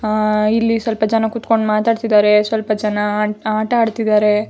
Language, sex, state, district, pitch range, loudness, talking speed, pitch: Kannada, female, Karnataka, Shimoga, 210-225 Hz, -16 LUFS, 160 wpm, 215 Hz